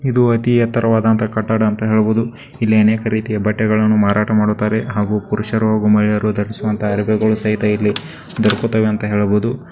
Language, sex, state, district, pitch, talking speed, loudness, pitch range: Kannada, male, Karnataka, Dakshina Kannada, 110 Hz, 150 wpm, -16 LUFS, 105-110 Hz